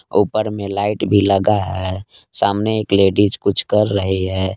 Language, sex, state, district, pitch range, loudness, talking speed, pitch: Hindi, male, Jharkhand, Palamu, 95-105 Hz, -17 LUFS, 170 wpm, 100 Hz